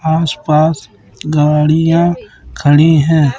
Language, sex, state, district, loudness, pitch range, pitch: Hindi, male, Chhattisgarh, Raipur, -12 LUFS, 150-160 Hz, 155 Hz